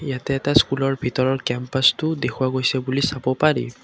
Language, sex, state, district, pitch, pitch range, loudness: Assamese, male, Assam, Kamrup Metropolitan, 130 Hz, 130-135 Hz, -21 LUFS